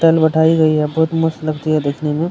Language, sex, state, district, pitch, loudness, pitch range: Hindi, male, Bihar, Kishanganj, 160 Hz, -16 LUFS, 155-160 Hz